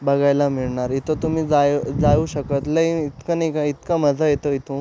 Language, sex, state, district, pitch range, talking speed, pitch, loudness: Marathi, male, Maharashtra, Aurangabad, 140-155 Hz, 185 wpm, 145 Hz, -20 LUFS